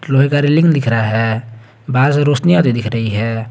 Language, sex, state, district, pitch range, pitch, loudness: Hindi, male, Jharkhand, Garhwa, 115-145 Hz, 120 Hz, -14 LUFS